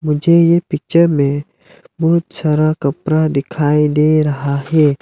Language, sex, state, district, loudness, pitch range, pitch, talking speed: Hindi, male, Arunachal Pradesh, Lower Dibang Valley, -14 LUFS, 145-165 Hz, 155 Hz, 130 wpm